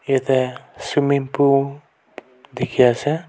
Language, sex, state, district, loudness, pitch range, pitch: Nagamese, male, Nagaland, Kohima, -19 LUFS, 135-145 Hz, 140 Hz